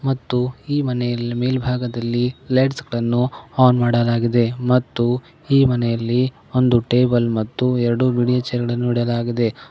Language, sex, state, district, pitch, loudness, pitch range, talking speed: Kannada, male, Karnataka, Koppal, 125 Hz, -19 LUFS, 120-125 Hz, 45 wpm